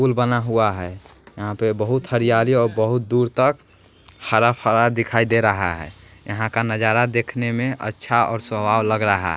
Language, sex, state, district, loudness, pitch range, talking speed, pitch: Hindi, male, Bihar, West Champaran, -19 LUFS, 105-120 Hz, 180 wpm, 115 Hz